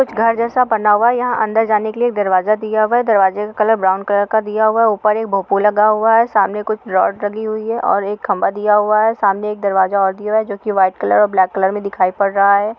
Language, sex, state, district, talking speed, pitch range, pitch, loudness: Hindi, female, Bihar, Samastipur, 310 wpm, 200-220 Hz, 210 Hz, -15 LUFS